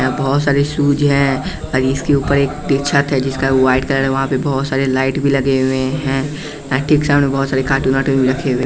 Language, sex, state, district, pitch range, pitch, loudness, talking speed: Hindi, male, Bihar, West Champaran, 130-140 Hz, 135 Hz, -15 LUFS, 200 wpm